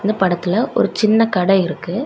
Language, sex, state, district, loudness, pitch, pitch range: Tamil, female, Tamil Nadu, Kanyakumari, -16 LUFS, 195 Hz, 185-225 Hz